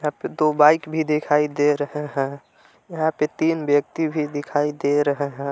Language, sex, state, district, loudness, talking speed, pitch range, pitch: Hindi, male, Jharkhand, Palamu, -21 LUFS, 195 wpm, 145-155 Hz, 150 Hz